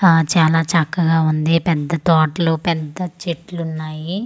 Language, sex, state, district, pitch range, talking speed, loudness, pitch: Telugu, female, Andhra Pradesh, Manyam, 160-170 Hz, 140 wpm, -18 LUFS, 165 Hz